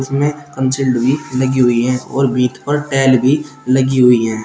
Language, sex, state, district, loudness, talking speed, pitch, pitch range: Hindi, male, Uttar Pradesh, Shamli, -15 LUFS, 175 wpm, 130 Hz, 125-140 Hz